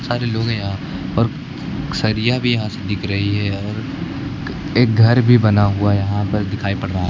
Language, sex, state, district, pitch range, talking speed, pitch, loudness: Hindi, male, Uttar Pradesh, Lucknow, 100-120 Hz, 205 wpm, 110 Hz, -18 LUFS